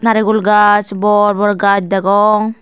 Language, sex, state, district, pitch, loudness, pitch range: Chakma, female, Tripura, Dhalai, 205 Hz, -12 LUFS, 200-215 Hz